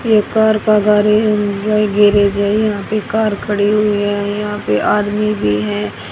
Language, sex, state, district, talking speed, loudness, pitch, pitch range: Hindi, female, Haryana, Rohtak, 175 wpm, -14 LUFS, 210 Hz, 205-215 Hz